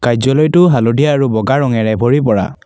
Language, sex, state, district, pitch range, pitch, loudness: Assamese, male, Assam, Kamrup Metropolitan, 115-145 Hz, 130 Hz, -12 LUFS